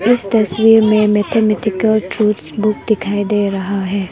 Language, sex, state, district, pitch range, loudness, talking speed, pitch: Hindi, female, Arunachal Pradesh, Longding, 200-220 Hz, -14 LUFS, 145 wpm, 210 Hz